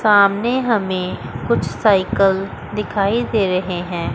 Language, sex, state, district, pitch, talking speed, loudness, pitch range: Hindi, female, Chandigarh, Chandigarh, 200 Hz, 115 wpm, -18 LUFS, 185-215 Hz